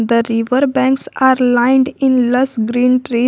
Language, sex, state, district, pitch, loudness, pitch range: English, female, Jharkhand, Garhwa, 255 Hz, -14 LUFS, 240-260 Hz